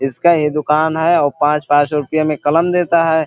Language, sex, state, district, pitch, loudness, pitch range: Bhojpuri, male, Uttar Pradesh, Gorakhpur, 150 Hz, -15 LUFS, 145-160 Hz